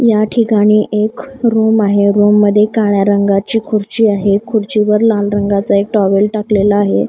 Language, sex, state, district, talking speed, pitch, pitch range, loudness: Marathi, female, Maharashtra, Gondia, 150 wpm, 210 Hz, 200-220 Hz, -12 LUFS